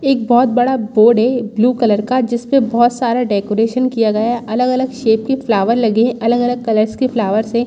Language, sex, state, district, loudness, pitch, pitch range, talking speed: Hindi, female, Chhattisgarh, Balrampur, -14 LUFS, 235 Hz, 220-250 Hz, 205 wpm